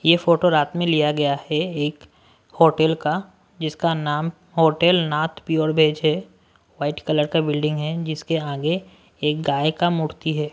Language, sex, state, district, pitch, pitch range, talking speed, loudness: Hindi, male, Maharashtra, Washim, 155 Hz, 150-165 Hz, 160 wpm, -21 LUFS